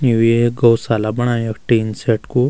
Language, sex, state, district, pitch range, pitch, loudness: Garhwali, male, Uttarakhand, Uttarkashi, 115-120 Hz, 115 Hz, -16 LUFS